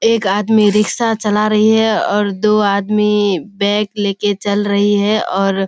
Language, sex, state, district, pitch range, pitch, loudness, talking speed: Hindi, female, Bihar, Kishanganj, 200-215 Hz, 210 Hz, -14 LUFS, 170 wpm